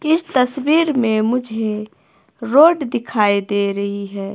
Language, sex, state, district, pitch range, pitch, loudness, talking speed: Hindi, female, Himachal Pradesh, Shimla, 200-270 Hz, 220 Hz, -17 LUFS, 125 wpm